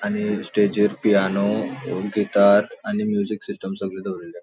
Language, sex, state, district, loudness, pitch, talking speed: Konkani, male, Goa, North and South Goa, -22 LUFS, 105 Hz, 135 wpm